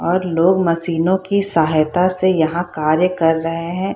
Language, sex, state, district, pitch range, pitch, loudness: Hindi, female, Bihar, Purnia, 165-185 Hz, 175 Hz, -16 LUFS